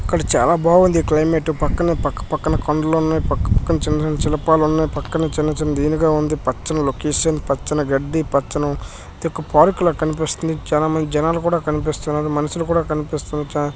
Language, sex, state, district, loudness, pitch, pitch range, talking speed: Telugu, male, Karnataka, Bellary, -19 LUFS, 155 Hz, 150-160 Hz, 165 wpm